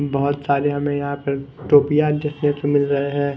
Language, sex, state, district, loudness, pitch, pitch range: Hindi, male, Chandigarh, Chandigarh, -20 LUFS, 145 Hz, 140-145 Hz